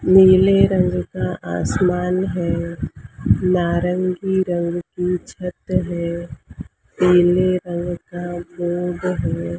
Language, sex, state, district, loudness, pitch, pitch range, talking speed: Hindi, male, Maharashtra, Mumbai Suburban, -19 LUFS, 175 Hz, 170-180 Hz, 95 wpm